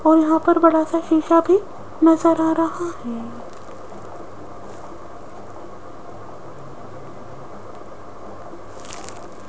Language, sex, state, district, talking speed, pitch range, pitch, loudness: Hindi, female, Rajasthan, Jaipur, 70 wpm, 320-335 Hz, 325 Hz, -18 LUFS